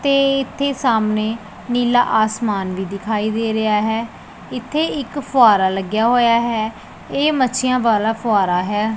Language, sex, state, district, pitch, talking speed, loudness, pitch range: Punjabi, female, Punjab, Pathankot, 225 Hz, 140 wpm, -18 LUFS, 215-255 Hz